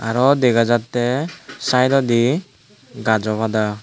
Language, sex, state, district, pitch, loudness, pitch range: Chakma, male, Tripura, Dhalai, 120 Hz, -18 LUFS, 110-130 Hz